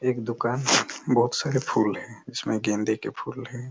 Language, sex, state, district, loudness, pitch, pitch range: Hindi, male, Chhattisgarh, Raigarh, -26 LUFS, 120 Hz, 110-125 Hz